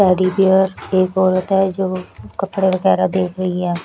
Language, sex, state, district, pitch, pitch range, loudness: Hindi, female, Bihar, Patna, 185 Hz, 180-190 Hz, -17 LUFS